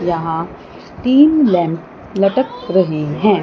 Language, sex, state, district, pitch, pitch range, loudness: Hindi, female, Chandigarh, Chandigarh, 190 Hz, 165-245 Hz, -15 LUFS